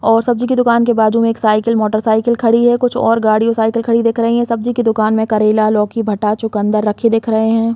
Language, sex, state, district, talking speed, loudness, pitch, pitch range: Hindi, female, Chhattisgarh, Bilaspur, 255 wpm, -14 LUFS, 225 Hz, 215-230 Hz